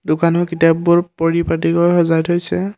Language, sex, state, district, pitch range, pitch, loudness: Assamese, male, Assam, Kamrup Metropolitan, 165-175 Hz, 170 Hz, -15 LUFS